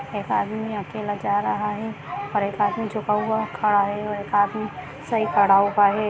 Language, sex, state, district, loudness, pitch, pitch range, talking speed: Hindi, female, Bihar, Darbhanga, -23 LUFS, 205 Hz, 200-215 Hz, 185 wpm